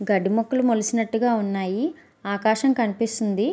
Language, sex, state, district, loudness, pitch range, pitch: Telugu, female, Andhra Pradesh, Visakhapatnam, -23 LUFS, 205-240 Hz, 225 Hz